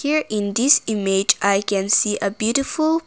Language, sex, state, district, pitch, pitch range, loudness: English, female, Nagaland, Kohima, 215 Hz, 200-275 Hz, -19 LUFS